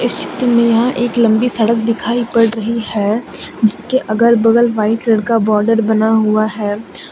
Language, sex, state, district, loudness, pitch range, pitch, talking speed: Hindi, female, Jharkhand, Deoghar, -14 LUFS, 220-235 Hz, 225 Hz, 170 wpm